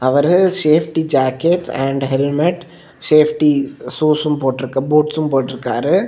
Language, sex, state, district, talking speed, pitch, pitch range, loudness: Tamil, male, Tamil Nadu, Kanyakumari, 100 wpm, 150 Hz, 135-160 Hz, -16 LUFS